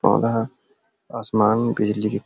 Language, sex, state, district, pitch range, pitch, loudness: Hindi, male, Bihar, Sitamarhi, 105-115 Hz, 110 Hz, -21 LUFS